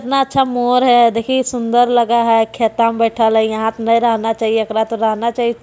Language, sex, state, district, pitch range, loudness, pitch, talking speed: Hindi, female, Bihar, Jamui, 225-245 Hz, -15 LUFS, 230 Hz, 215 wpm